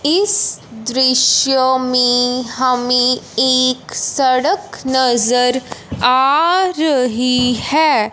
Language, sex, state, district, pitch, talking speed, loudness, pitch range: Hindi, male, Punjab, Fazilka, 255 Hz, 75 wpm, -14 LUFS, 250-270 Hz